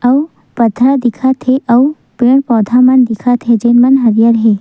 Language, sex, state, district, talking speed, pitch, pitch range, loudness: Chhattisgarhi, female, Chhattisgarh, Sukma, 170 wpm, 245 Hz, 230-260 Hz, -10 LUFS